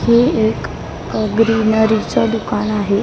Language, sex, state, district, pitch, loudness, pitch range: Marathi, female, Maharashtra, Mumbai Suburban, 220 Hz, -16 LUFS, 210-225 Hz